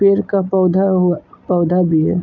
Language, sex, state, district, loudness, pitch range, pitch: Hindi, male, Uttar Pradesh, Budaun, -16 LUFS, 175-195 Hz, 185 Hz